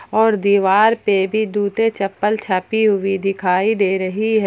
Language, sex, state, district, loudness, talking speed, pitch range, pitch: Hindi, female, Jharkhand, Palamu, -17 LUFS, 160 wpm, 195-220 Hz, 205 Hz